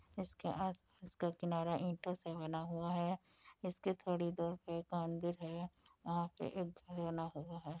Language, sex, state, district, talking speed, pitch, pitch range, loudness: Hindi, female, Uttar Pradesh, Budaun, 185 wpm, 170 Hz, 165-180 Hz, -43 LUFS